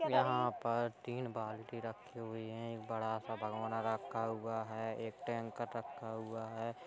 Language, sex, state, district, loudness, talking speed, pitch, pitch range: Hindi, male, Uttar Pradesh, Hamirpur, -41 LUFS, 165 wpm, 115 Hz, 110-115 Hz